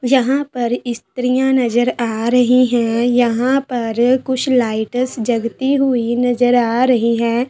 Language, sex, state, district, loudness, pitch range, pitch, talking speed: Hindi, female, Bihar, Araria, -16 LUFS, 235-255 Hz, 245 Hz, 150 wpm